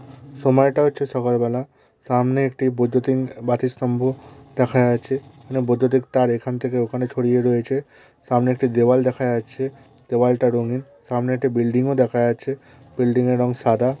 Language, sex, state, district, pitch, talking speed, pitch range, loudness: Bengali, male, West Bengal, Purulia, 125 Hz, 145 wpm, 125-135 Hz, -20 LUFS